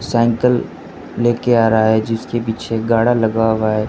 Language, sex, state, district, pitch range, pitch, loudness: Hindi, male, Rajasthan, Bikaner, 110-120 Hz, 115 Hz, -16 LUFS